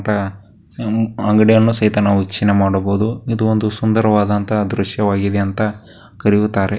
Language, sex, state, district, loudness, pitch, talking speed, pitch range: Kannada, male, Karnataka, Dakshina Kannada, -16 LUFS, 105 Hz, 105 wpm, 100-110 Hz